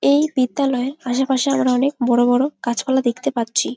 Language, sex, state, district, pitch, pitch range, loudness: Bengali, female, West Bengal, Jalpaiguri, 255 Hz, 245-275 Hz, -19 LUFS